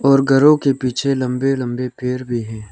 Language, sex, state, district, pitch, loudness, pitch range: Hindi, male, Arunachal Pradesh, Lower Dibang Valley, 130 Hz, -17 LUFS, 125-135 Hz